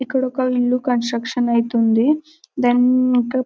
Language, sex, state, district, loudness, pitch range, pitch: Telugu, male, Telangana, Karimnagar, -18 LUFS, 240-260 Hz, 250 Hz